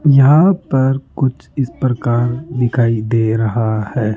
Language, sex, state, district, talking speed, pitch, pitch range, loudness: Hindi, male, Rajasthan, Jaipur, 130 wpm, 125 Hz, 115-135 Hz, -15 LUFS